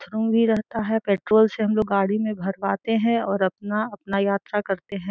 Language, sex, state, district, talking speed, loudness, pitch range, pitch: Hindi, female, Jharkhand, Sahebganj, 190 wpm, -23 LUFS, 195-220 Hz, 210 Hz